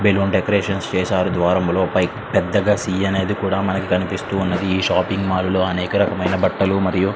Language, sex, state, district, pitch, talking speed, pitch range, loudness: Telugu, male, Andhra Pradesh, Srikakulam, 95 Hz, 90 wpm, 95-100 Hz, -19 LUFS